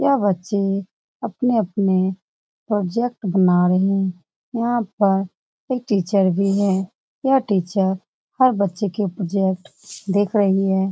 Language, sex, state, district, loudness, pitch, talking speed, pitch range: Hindi, female, Bihar, Lakhisarai, -20 LUFS, 195 Hz, 120 wpm, 190-215 Hz